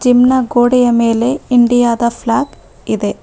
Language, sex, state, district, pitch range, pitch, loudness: Kannada, female, Karnataka, Bangalore, 235-250 Hz, 245 Hz, -12 LUFS